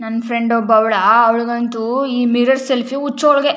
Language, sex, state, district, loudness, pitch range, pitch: Kannada, female, Karnataka, Chamarajanagar, -15 LUFS, 230-270 Hz, 240 Hz